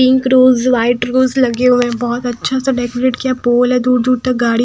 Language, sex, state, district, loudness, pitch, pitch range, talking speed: Hindi, female, Haryana, Charkhi Dadri, -13 LUFS, 250 Hz, 245-255 Hz, 230 wpm